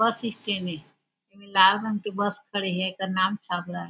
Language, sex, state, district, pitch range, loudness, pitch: Chhattisgarhi, female, Chhattisgarh, Raigarh, 185-205 Hz, -25 LUFS, 195 Hz